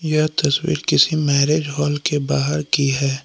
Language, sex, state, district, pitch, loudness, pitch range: Hindi, male, Jharkhand, Palamu, 145 Hz, -18 LUFS, 140-155 Hz